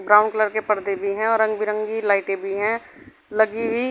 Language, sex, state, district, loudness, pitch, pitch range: Hindi, female, Uttar Pradesh, Saharanpur, -21 LUFS, 215 Hz, 205-225 Hz